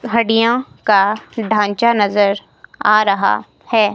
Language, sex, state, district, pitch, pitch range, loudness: Hindi, female, Himachal Pradesh, Shimla, 210 Hz, 200-230 Hz, -15 LUFS